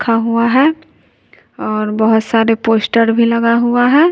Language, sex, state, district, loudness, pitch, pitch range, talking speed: Hindi, female, Bihar, West Champaran, -13 LUFS, 230 Hz, 225-245 Hz, 160 wpm